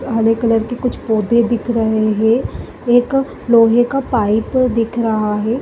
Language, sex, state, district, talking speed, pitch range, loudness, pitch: Hindi, female, Uttar Pradesh, Jalaun, 160 wpm, 225-245 Hz, -15 LUFS, 230 Hz